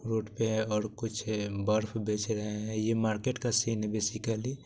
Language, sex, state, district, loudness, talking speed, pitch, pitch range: Maithili, male, Bihar, Supaul, -32 LUFS, 220 wpm, 110 Hz, 105-115 Hz